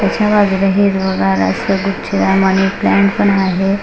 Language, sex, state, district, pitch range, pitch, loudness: Marathi, female, Maharashtra, Mumbai Suburban, 190-200 Hz, 195 Hz, -13 LUFS